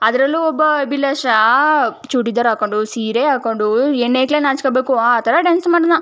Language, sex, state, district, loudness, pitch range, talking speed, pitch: Kannada, female, Karnataka, Chamarajanagar, -15 LUFS, 230-300 Hz, 160 wpm, 260 Hz